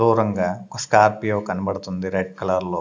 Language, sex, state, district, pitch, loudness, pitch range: Telugu, male, Andhra Pradesh, Sri Satya Sai, 100 Hz, -21 LUFS, 95-105 Hz